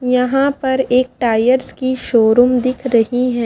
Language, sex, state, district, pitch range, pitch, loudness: Hindi, female, Haryana, Jhajjar, 240-260 Hz, 250 Hz, -15 LUFS